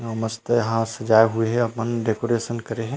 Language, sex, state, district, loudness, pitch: Chhattisgarhi, male, Chhattisgarh, Rajnandgaon, -22 LUFS, 115 Hz